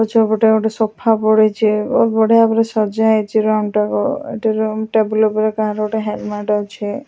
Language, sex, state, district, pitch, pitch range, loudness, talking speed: Odia, female, Odisha, Khordha, 220 Hz, 215-220 Hz, -16 LUFS, 160 wpm